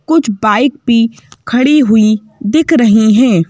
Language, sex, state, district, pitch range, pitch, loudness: Hindi, female, Madhya Pradesh, Bhopal, 215-280 Hz, 230 Hz, -10 LUFS